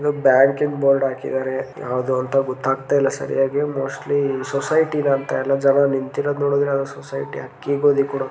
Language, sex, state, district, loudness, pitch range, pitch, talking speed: Kannada, male, Karnataka, Gulbarga, -20 LUFS, 135-140 Hz, 135 Hz, 160 wpm